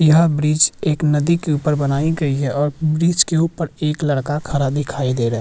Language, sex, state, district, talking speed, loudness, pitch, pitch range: Hindi, male, Bihar, Vaishali, 220 wpm, -18 LUFS, 150 Hz, 140-160 Hz